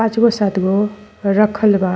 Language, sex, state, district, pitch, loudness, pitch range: Bhojpuri, female, Uttar Pradesh, Ghazipur, 210 Hz, -16 LUFS, 195-215 Hz